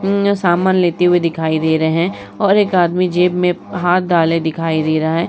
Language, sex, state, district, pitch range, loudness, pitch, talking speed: Hindi, female, Uttar Pradesh, Muzaffarnagar, 165-180 Hz, -15 LUFS, 175 Hz, 215 wpm